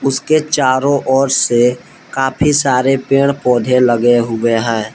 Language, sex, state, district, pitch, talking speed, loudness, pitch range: Hindi, male, Jharkhand, Palamu, 130 Hz, 135 wpm, -13 LUFS, 120-135 Hz